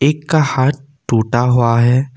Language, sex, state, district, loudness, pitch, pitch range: Hindi, male, Assam, Kamrup Metropolitan, -14 LUFS, 130 Hz, 120-145 Hz